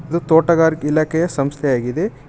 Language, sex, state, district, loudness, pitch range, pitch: Kannada, male, Karnataka, Koppal, -17 LUFS, 140-165 Hz, 155 Hz